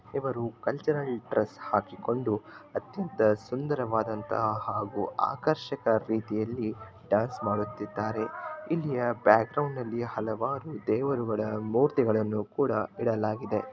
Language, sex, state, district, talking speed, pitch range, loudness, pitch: Kannada, male, Karnataka, Shimoga, 85 wpm, 110-140 Hz, -30 LUFS, 115 Hz